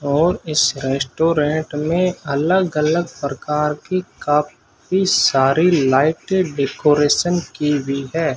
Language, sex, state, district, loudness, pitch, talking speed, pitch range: Hindi, male, Rajasthan, Bikaner, -18 LUFS, 150 Hz, 105 wpm, 140-170 Hz